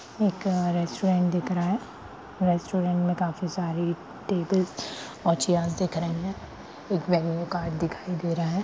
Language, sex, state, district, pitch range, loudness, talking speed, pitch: Hindi, female, Bihar, Gaya, 170-185 Hz, -27 LUFS, 155 wpm, 175 Hz